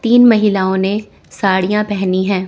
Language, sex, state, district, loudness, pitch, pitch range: Hindi, female, Chandigarh, Chandigarh, -14 LUFS, 200 Hz, 190-210 Hz